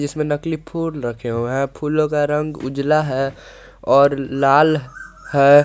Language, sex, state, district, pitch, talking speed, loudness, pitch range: Hindi, male, Jharkhand, Garhwa, 145 Hz, 150 wpm, -18 LUFS, 135-155 Hz